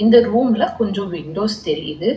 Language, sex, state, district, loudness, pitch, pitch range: Tamil, female, Tamil Nadu, Chennai, -18 LUFS, 215 Hz, 170-230 Hz